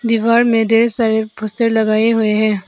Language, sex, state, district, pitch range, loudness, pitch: Hindi, female, Arunachal Pradesh, Papum Pare, 215-230 Hz, -14 LUFS, 225 Hz